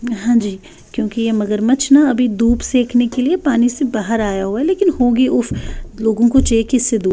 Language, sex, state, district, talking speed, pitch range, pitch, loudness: Hindi, female, Bihar, West Champaran, 210 wpm, 225-255 Hz, 240 Hz, -15 LUFS